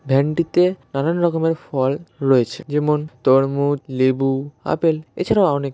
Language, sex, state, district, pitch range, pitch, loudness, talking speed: Bengali, male, West Bengal, North 24 Parganas, 135-165 Hz, 145 Hz, -19 LUFS, 135 wpm